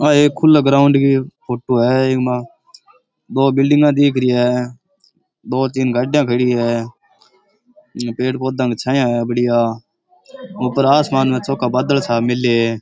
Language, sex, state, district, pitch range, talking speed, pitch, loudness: Rajasthani, male, Rajasthan, Churu, 125-145 Hz, 150 wpm, 130 Hz, -16 LUFS